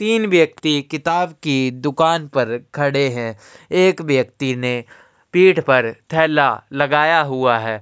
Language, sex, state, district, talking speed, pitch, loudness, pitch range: Hindi, male, Uttar Pradesh, Jyotiba Phule Nagar, 130 wpm, 145 Hz, -17 LUFS, 130-165 Hz